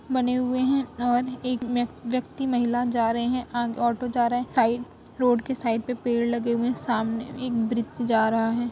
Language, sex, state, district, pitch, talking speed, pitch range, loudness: Hindi, female, Uttar Pradesh, Budaun, 240 Hz, 215 wpm, 235-250 Hz, -25 LUFS